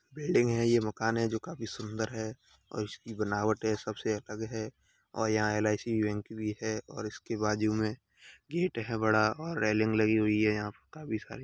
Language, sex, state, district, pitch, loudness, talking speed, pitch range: Hindi, male, Uttar Pradesh, Hamirpur, 110 Hz, -32 LUFS, 210 wpm, 105-115 Hz